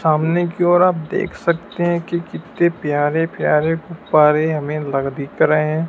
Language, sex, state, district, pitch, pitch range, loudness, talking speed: Hindi, male, Madhya Pradesh, Dhar, 160 Hz, 150-170 Hz, -18 LUFS, 175 wpm